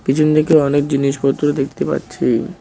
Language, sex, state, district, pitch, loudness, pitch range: Bengali, male, West Bengal, Cooch Behar, 145 Hz, -16 LUFS, 140-155 Hz